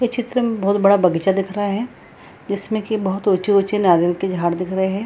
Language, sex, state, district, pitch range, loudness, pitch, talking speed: Hindi, female, Bihar, Samastipur, 190-210 Hz, -19 LUFS, 200 Hz, 225 wpm